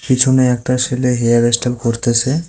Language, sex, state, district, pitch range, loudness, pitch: Bengali, male, West Bengal, Cooch Behar, 120-130 Hz, -14 LUFS, 125 Hz